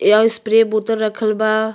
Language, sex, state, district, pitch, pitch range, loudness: Bhojpuri, female, Uttar Pradesh, Ghazipur, 220 Hz, 215-225 Hz, -16 LUFS